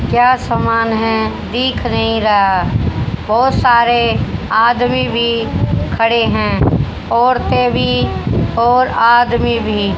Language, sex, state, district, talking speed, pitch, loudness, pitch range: Hindi, female, Haryana, Jhajjar, 100 wpm, 230 Hz, -14 LUFS, 215-240 Hz